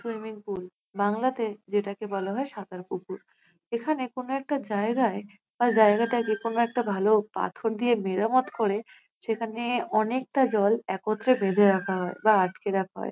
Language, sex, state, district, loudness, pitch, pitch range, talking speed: Bengali, female, West Bengal, North 24 Parganas, -27 LUFS, 215 Hz, 200-235 Hz, 150 wpm